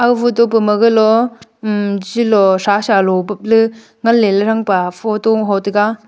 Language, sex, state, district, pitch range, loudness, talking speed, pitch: Wancho, female, Arunachal Pradesh, Longding, 200-225 Hz, -14 LUFS, 110 wpm, 215 Hz